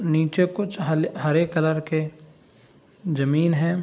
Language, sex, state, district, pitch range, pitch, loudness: Hindi, male, Bihar, Saharsa, 155-170 Hz, 160 Hz, -23 LUFS